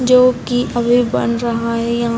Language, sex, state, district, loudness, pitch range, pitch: Hindi, female, Bihar, Samastipur, -16 LUFS, 235-245 Hz, 240 Hz